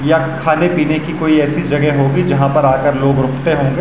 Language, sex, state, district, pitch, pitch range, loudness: Hindi, male, Uttarakhand, Tehri Garhwal, 150 Hz, 140-160 Hz, -14 LUFS